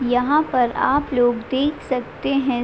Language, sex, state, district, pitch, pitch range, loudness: Hindi, female, Bihar, Madhepura, 255 Hz, 245-280 Hz, -20 LUFS